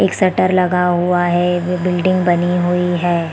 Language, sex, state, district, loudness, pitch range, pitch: Hindi, female, Chhattisgarh, Bilaspur, -15 LUFS, 175-180 Hz, 180 Hz